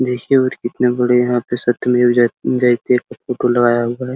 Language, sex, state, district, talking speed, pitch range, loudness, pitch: Hindi, male, Bihar, Araria, 215 wpm, 120-125 Hz, -16 LUFS, 125 Hz